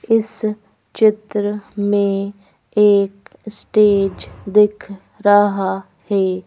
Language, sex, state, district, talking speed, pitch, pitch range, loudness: Hindi, female, Madhya Pradesh, Bhopal, 75 wpm, 205 Hz, 195-210 Hz, -17 LUFS